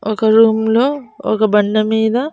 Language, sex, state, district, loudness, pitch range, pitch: Telugu, female, Andhra Pradesh, Annamaya, -14 LUFS, 215-245 Hz, 220 Hz